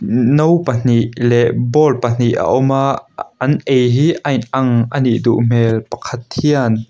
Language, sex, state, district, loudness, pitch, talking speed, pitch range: Mizo, male, Mizoram, Aizawl, -14 LUFS, 125 Hz, 175 wpm, 120-135 Hz